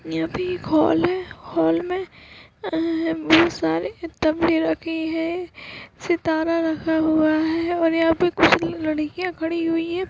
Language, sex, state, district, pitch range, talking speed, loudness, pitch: Hindi, female, Uttarakhand, Uttarkashi, 315-340 Hz, 155 wpm, -21 LUFS, 330 Hz